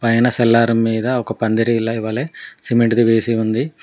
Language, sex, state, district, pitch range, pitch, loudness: Telugu, male, Telangana, Mahabubabad, 115-120 Hz, 115 Hz, -17 LUFS